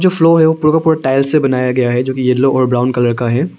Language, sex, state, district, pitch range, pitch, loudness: Hindi, male, Arunachal Pradesh, Longding, 125-155 Hz, 130 Hz, -13 LUFS